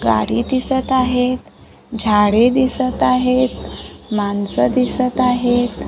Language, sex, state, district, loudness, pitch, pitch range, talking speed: Marathi, female, Maharashtra, Gondia, -16 LUFS, 250 Hz, 215-255 Hz, 90 wpm